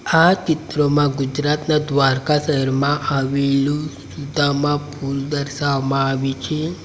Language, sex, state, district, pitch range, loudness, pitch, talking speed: Gujarati, male, Gujarat, Valsad, 135-150 Hz, -19 LUFS, 145 Hz, 95 wpm